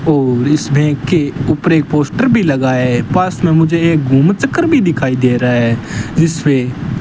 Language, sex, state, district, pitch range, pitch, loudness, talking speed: Hindi, male, Rajasthan, Bikaner, 130-165 Hz, 150 Hz, -13 LUFS, 190 wpm